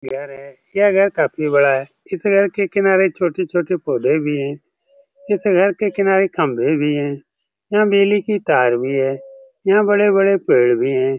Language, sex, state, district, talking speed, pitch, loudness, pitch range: Hindi, male, Bihar, Saran, 175 wpm, 190 Hz, -17 LUFS, 140-205 Hz